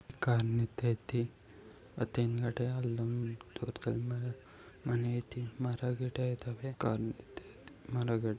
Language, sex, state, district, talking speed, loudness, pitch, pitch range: Kannada, male, Karnataka, Raichur, 95 wpm, -36 LUFS, 120 Hz, 115-125 Hz